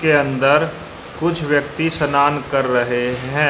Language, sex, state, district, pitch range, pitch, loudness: Hindi, male, Haryana, Rohtak, 135-150 Hz, 145 Hz, -18 LUFS